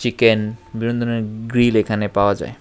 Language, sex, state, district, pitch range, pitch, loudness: Bengali, male, Tripura, West Tripura, 105-120 Hz, 110 Hz, -19 LUFS